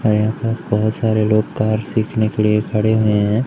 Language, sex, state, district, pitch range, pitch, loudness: Hindi, male, Madhya Pradesh, Umaria, 105-110 Hz, 110 Hz, -17 LUFS